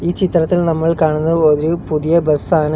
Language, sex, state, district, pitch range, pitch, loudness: Malayalam, male, Kerala, Kollam, 155-170 Hz, 165 Hz, -15 LUFS